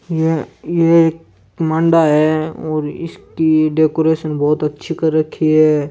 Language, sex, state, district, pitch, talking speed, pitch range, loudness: Hindi, male, Rajasthan, Churu, 155 Hz, 110 wpm, 155-165 Hz, -15 LUFS